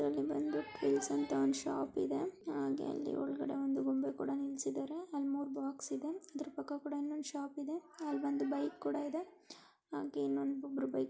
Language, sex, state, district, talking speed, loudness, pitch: Kannada, female, Karnataka, Raichur, 180 wpm, -39 LUFS, 270 Hz